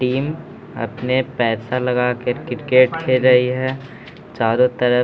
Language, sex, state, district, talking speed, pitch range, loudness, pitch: Hindi, male, Bihar, Gaya, 155 wpm, 125-130 Hz, -18 LUFS, 125 Hz